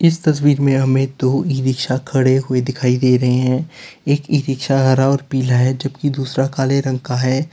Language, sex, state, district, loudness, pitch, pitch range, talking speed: Hindi, male, Uttar Pradesh, Lalitpur, -17 LUFS, 135 Hz, 130-140 Hz, 205 wpm